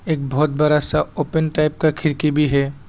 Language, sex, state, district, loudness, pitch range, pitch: Hindi, male, Assam, Kamrup Metropolitan, -17 LUFS, 145-155 Hz, 150 Hz